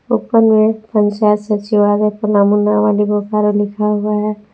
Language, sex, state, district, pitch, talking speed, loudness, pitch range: Hindi, female, Jharkhand, Palamu, 210 Hz, 130 wpm, -14 LUFS, 210-215 Hz